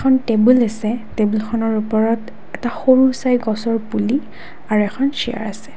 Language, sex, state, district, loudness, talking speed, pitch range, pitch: Assamese, female, Assam, Kamrup Metropolitan, -18 LUFS, 135 wpm, 215-255 Hz, 230 Hz